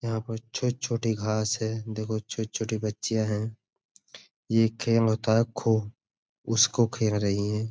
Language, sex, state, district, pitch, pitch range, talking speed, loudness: Hindi, male, Uttar Pradesh, Budaun, 110 Hz, 110-115 Hz, 100 wpm, -27 LUFS